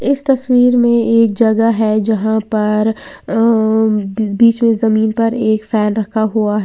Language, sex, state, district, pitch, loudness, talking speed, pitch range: Hindi, female, Uttar Pradesh, Lalitpur, 220 Hz, -14 LUFS, 160 wpm, 215-230 Hz